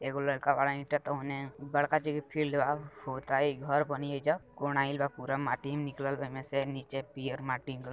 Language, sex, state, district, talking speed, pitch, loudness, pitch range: Bhojpuri, male, Bihar, Gopalganj, 210 wpm, 140 Hz, -33 LUFS, 135-145 Hz